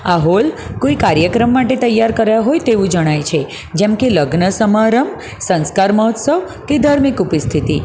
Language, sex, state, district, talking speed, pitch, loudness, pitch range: Gujarati, female, Gujarat, Valsad, 155 wpm, 215 Hz, -14 LUFS, 170-245 Hz